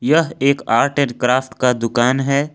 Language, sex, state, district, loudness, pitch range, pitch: Hindi, male, Jharkhand, Ranchi, -17 LUFS, 125-140 Hz, 135 Hz